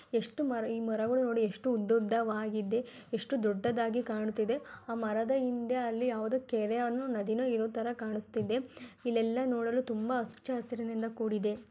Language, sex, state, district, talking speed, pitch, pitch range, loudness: Kannada, female, Karnataka, Gulbarga, 140 wpm, 230 Hz, 220-245 Hz, -33 LUFS